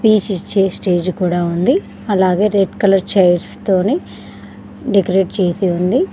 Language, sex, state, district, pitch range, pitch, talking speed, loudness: Telugu, female, Telangana, Mahabubabad, 175-195 Hz, 185 Hz, 110 wpm, -15 LUFS